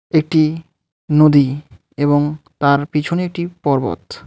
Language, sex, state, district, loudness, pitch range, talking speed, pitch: Bengali, male, West Bengal, Alipurduar, -16 LUFS, 140-160 Hz, 100 wpm, 150 Hz